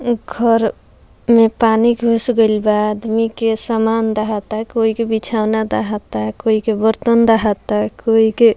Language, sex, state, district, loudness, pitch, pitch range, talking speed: Bhojpuri, female, Bihar, Muzaffarpur, -16 LUFS, 220 Hz, 215-230 Hz, 155 wpm